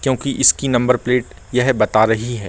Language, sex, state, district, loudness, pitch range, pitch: Hindi, male, Uttar Pradesh, Jalaun, -16 LUFS, 115-130 Hz, 125 Hz